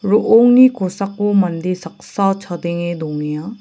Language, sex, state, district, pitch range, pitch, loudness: Garo, male, Meghalaya, South Garo Hills, 170-205 Hz, 190 Hz, -16 LUFS